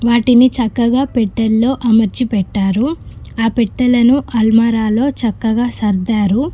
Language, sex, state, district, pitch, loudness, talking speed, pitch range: Telugu, female, Telangana, Mahabubabad, 230 Hz, -14 LUFS, 90 wpm, 220-245 Hz